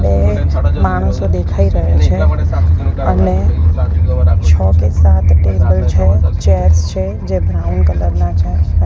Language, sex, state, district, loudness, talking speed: Gujarati, female, Gujarat, Gandhinagar, -13 LUFS, 120 wpm